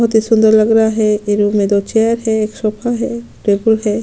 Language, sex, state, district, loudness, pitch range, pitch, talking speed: Hindi, female, Chhattisgarh, Sukma, -14 LUFS, 210-225 Hz, 220 Hz, 255 wpm